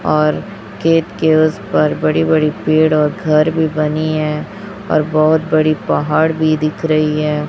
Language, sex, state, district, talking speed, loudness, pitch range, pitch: Hindi, female, Chhattisgarh, Raipur, 160 wpm, -15 LUFS, 150-160 Hz, 155 Hz